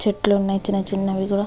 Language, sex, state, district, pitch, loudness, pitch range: Telugu, female, Andhra Pradesh, Visakhapatnam, 200 Hz, -21 LUFS, 195-200 Hz